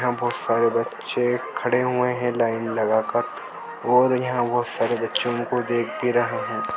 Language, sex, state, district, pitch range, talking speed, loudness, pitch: Hindi, male, Goa, North and South Goa, 115-125 Hz, 175 wpm, -23 LUFS, 120 Hz